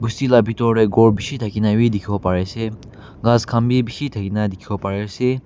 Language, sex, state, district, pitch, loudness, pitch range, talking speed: Nagamese, male, Nagaland, Kohima, 110 Hz, -19 LUFS, 105-120 Hz, 250 wpm